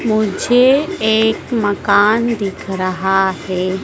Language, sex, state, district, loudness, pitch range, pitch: Hindi, female, Madhya Pradesh, Dhar, -15 LUFS, 190-230 Hz, 205 Hz